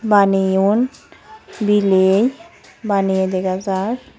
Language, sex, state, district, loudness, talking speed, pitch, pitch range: Chakma, female, Tripura, Unakoti, -17 LUFS, 70 wpm, 200 Hz, 190-230 Hz